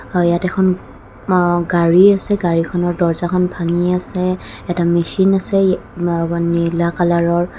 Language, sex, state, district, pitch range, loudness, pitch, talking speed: Assamese, female, Assam, Kamrup Metropolitan, 170-185 Hz, -16 LUFS, 175 Hz, 120 wpm